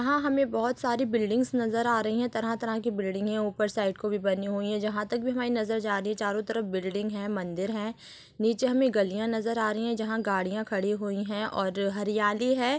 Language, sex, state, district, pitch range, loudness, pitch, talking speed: Hindi, female, Chhattisgarh, Sukma, 205-235 Hz, -29 LUFS, 215 Hz, 230 wpm